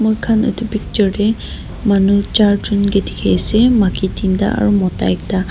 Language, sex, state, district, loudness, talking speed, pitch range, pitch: Nagamese, female, Nagaland, Dimapur, -15 LUFS, 140 wpm, 195-220 Hz, 205 Hz